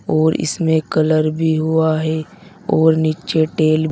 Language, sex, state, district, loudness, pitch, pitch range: Hindi, male, Uttar Pradesh, Saharanpur, -17 LUFS, 160 Hz, 155-160 Hz